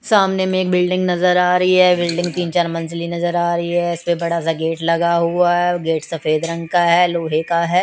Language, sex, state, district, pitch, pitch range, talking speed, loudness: Hindi, female, Chandigarh, Chandigarh, 175 Hz, 170-180 Hz, 245 wpm, -17 LUFS